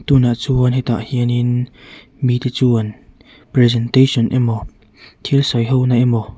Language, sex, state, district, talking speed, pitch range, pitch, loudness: Mizo, male, Mizoram, Aizawl, 115 wpm, 115-130 Hz, 125 Hz, -16 LUFS